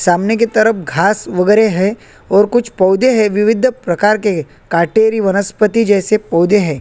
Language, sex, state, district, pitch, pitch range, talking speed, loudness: Hindi, male, Chhattisgarh, Korba, 205 Hz, 185-220 Hz, 160 wpm, -13 LUFS